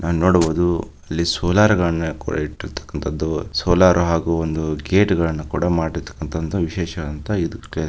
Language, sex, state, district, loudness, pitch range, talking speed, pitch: Kannada, male, Karnataka, Shimoga, -20 LUFS, 80-90 Hz, 120 wpm, 85 Hz